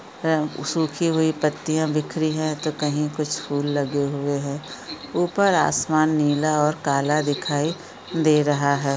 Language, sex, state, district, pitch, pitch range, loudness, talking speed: Hindi, female, Chhattisgarh, Bilaspur, 150 Hz, 145-155 Hz, -22 LUFS, 145 wpm